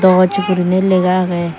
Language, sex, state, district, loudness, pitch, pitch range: Chakma, female, Tripura, Dhalai, -14 LUFS, 185 Hz, 180-190 Hz